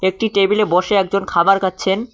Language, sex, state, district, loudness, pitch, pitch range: Bengali, male, West Bengal, Cooch Behar, -16 LUFS, 195 Hz, 190-205 Hz